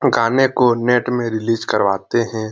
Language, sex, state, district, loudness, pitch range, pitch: Hindi, male, Bihar, Lakhisarai, -17 LUFS, 110-125 Hz, 115 Hz